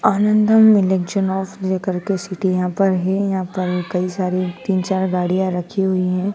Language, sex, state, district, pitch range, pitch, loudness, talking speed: Hindi, female, Madhya Pradesh, Dhar, 180-195 Hz, 190 Hz, -18 LUFS, 170 wpm